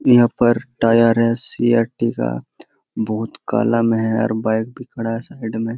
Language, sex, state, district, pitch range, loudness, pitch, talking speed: Hindi, male, Jharkhand, Sahebganj, 110-120 Hz, -18 LUFS, 115 Hz, 185 wpm